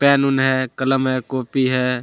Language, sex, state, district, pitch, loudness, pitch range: Hindi, male, Chhattisgarh, Kabirdham, 130 Hz, -19 LUFS, 130-135 Hz